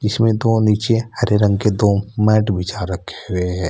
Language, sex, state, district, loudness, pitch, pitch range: Hindi, male, Uttar Pradesh, Saharanpur, -17 LUFS, 105 Hz, 100-110 Hz